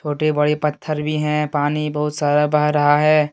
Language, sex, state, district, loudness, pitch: Hindi, male, Jharkhand, Deoghar, -18 LUFS, 150 Hz